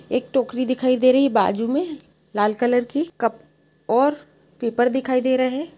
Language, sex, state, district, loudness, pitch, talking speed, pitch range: Hindi, female, Uttar Pradesh, Jalaun, -21 LUFS, 255 Hz, 185 wpm, 230-265 Hz